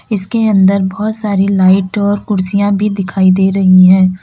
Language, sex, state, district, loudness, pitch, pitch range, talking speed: Hindi, female, Uttar Pradesh, Lalitpur, -11 LUFS, 195 Hz, 190-205 Hz, 170 wpm